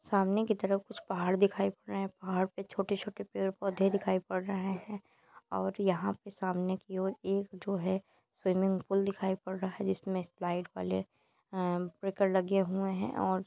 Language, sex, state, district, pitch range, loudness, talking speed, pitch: Hindi, female, Uttar Pradesh, Deoria, 185-195 Hz, -34 LUFS, 200 wpm, 190 Hz